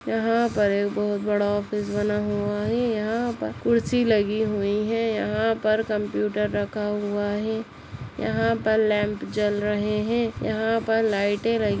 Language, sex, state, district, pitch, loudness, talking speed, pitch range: Hindi, female, Bihar, Begusarai, 210 Hz, -24 LUFS, 155 wpm, 205-225 Hz